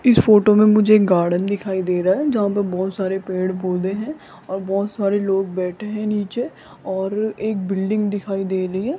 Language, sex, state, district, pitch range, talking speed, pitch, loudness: Hindi, female, Rajasthan, Jaipur, 190-215 Hz, 200 wpm, 195 Hz, -19 LUFS